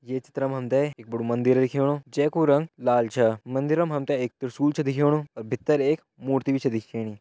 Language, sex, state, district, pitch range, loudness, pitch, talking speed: Hindi, male, Uttarakhand, Tehri Garhwal, 125-145 Hz, -25 LUFS, 135 Hz, 215 wpm